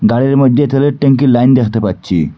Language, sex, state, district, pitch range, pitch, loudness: Bengali, male, Assam, Hailakandi, 120-135 Hz, 130 Hz, -11 LUFS